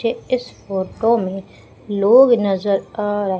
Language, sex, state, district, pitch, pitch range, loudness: Hindi, female, Madhya Pradesh, Umaria, 205 Hz, 195-230 Hz, -18 LUFS